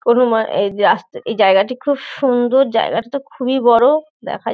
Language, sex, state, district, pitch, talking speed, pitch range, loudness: Bengali, female, West Bengal, North 24 Parganas, 250 Hz, 225 wpm, 225-275 Hz, -15 LUFS